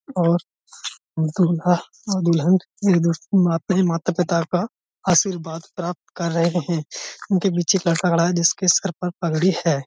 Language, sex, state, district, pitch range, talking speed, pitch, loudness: Hindi, male, Uttar Pradesh, Budaun, 170-185 Hz, 150 wpm, 175 Hz, -20 LUFS